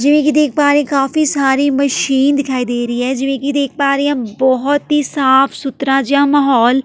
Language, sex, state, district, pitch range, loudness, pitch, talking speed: Punjabi, female, Delhi, New Delhi, 265-285 Hz, -14 LUFS, 275 Hz, 225 wpm